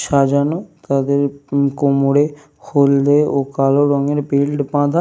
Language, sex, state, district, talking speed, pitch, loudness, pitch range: Bengali, male, Jharkhand, Jamtara, 105 wpm, 140 Hz, -16 LUFS, 140-145 Hz